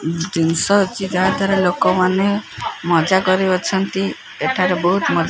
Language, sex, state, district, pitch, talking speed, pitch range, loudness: Odia, male, Odisha, Khordha, 185 Hz, 115 wpm, 175-195 Hz, -17 LUFS